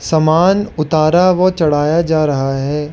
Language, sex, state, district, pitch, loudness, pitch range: Hindi, male, Arunachal Pradesh, Lower Dibang Valley, 155 Hz, -13 LUFS, 150-175 Hz